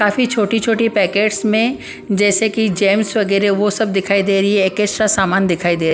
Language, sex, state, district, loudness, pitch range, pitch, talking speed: Hindi, female, Punjab, Pathankot, -15 LUFS, 195-215 Hz, 205 Hz, 190 wpm